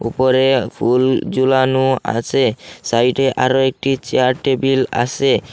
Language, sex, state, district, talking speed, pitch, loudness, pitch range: Bengali, male, Assam, Hailakandi, 110 wpm, 130 Hz, -16 LUFS, 125-135 Hz